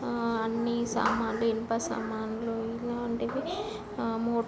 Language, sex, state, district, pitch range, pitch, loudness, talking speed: Telugu, female, Andhra Pradesh, Visakhapatnam, 225-235 Hz, 230 Hz, -31 LUFS, 95 wpm